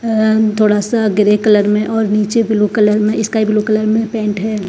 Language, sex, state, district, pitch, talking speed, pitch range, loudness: Hindi, female, Punjab, Kapurthala, 215 Hz, 230 wpm, 210-220 Hz, -13 LUFS